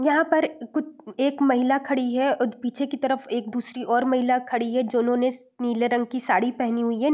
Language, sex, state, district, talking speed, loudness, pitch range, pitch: Hindi, female, Bihar, East Champaran, 210 wpm, -24 LUFS, 240-275 Hz, 250 Hz